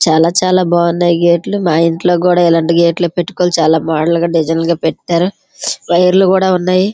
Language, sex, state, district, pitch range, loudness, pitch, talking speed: Telugu, female, Andhra Pradesh, Srikakulam, 165-180 Hz, -12 LUFS, 170 Hz, 180 wpm